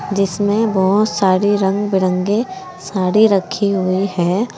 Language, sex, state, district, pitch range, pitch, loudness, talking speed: Hindi, female, Uttar Pradesh, Saharanpur, 190-210 Hz, 200 Hz, -16 LUFS, 120 wpm